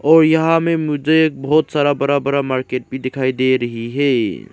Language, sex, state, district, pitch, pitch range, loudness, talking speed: Hindi, male, Arunachal Pradesh, Lower Dibang Valley, 140 Hz, 130-155 Hz, -16 LUFS, 200 wpm